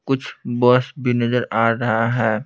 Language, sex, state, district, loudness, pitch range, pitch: Hindi, male, Bihar, Patna, -19 LUFS, 115-125 Hz, 120 Hz